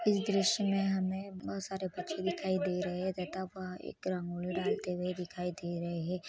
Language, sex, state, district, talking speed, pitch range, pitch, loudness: Chhattisgarhi, female, Chhattisgarh, Korba, 145 wpm, 180-195 Hz, 185 Hz, -35 LUFS